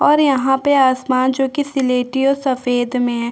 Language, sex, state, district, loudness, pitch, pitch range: Hindi, female, Chhattisgarh, Bastar, -16 LUFS, 265 Hz, 250-275 Hz